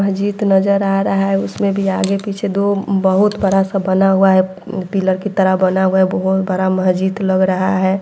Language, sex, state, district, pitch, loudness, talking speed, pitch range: Hindi, female, Bihar, Sitamarhi, 195 Hz, -15 LUFS, 195 wpm, 190-195 Hz